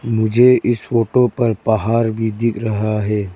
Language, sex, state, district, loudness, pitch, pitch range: Hindi, female, Arunachal Pradesh, Lower Dibang Valley, -16 LUFS, 115 Hz, 110-120 Hz